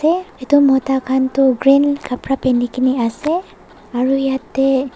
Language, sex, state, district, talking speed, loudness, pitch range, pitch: Nagamese, female, Nagaland, Dimapur, 145 wpm, -16 LUFS, 255-275 Hz, 270 Hz